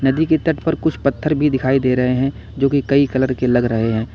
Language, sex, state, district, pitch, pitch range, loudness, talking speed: Hindi, male, Uttar Pradesh, Lalitpur, 135 Hz, 125-145 Hz, -17 LUFS, 275 wpm